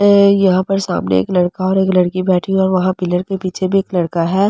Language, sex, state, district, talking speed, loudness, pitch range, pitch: Hindi, female, Delhi, New Delhi, 265 wpm, -15 LUFS, 180-195 Hz, 185 Hz